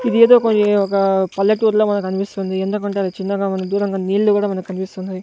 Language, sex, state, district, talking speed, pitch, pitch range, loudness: Telugu, male, Andhra Pradesh, Sri Satya Sai, 170 wpm, 200 Hz, 190-210 Hz, -17 LUFS